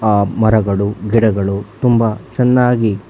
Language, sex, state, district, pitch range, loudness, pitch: Kannada, male, Karnataka, Bangalore, 100-115 Hz, -15 LUFS, 110 Hz